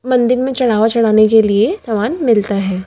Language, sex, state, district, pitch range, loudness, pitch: Hindi, female, Delhi, New Delhi, 215-245 Hz, -13 LUFS, 220 Hz